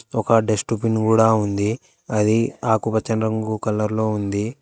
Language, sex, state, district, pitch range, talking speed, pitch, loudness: Telugu, female, Telangana, Hyderabad, 105-115 Hz, 145 wpm, 110 Hz, -20 LUFS